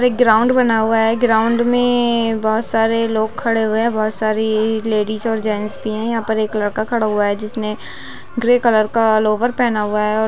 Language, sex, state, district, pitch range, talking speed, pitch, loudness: Hindi, female, Chhattisgarh, Bilaspur, 215-230 Hz, 205 wpm, 220 Hz, -17 LUFS